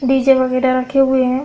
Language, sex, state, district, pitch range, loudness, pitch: Hindi, female, Uttar Pradesh, Budaun, 255-265 Hz, -14 LUFS, 260 Hz